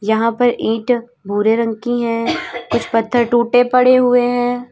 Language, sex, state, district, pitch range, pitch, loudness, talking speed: Hindi, female, Uttar Pradesh, Lalitpur, 225-245 Hz, 240 Hz, -16 LUFS, 165 wpm